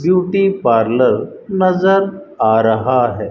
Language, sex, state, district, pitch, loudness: Hindi, male, Rajasthan, Bikaner, 175 Hz, -15 LUFS